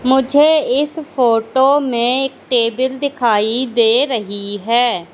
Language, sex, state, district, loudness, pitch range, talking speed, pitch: Hindi, female, Madhya Pradesh, Katni, -15 LUFS, 230-270 Hz, 115 wpm, 255 Hz